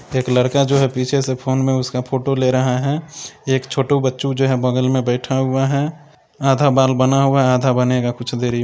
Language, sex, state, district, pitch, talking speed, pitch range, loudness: Maithili, male, Bihar, Samastipur, 130 Hz, 230 wpm, 130-135 Hz, -17 LUFS